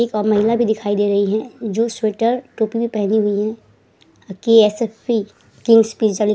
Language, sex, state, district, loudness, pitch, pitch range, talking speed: Hindi, female, Uttar Pradesh, Hamirpur, -18 LUFS, 220 Hz, 210-230 Hz, 215 wpm